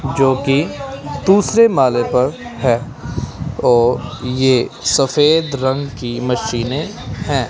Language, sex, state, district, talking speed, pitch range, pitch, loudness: Hindi, male, Punjab, Kapurthala, 105 wpm, 125-145 Hz, 135 Hz, -16 LUFS